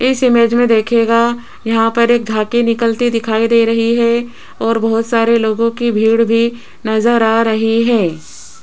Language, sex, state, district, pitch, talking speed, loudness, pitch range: Hindi, female, Rajasthan, Jaipur, 230 Hz, 165 wpm, -13 LUFS, 225-235 Hz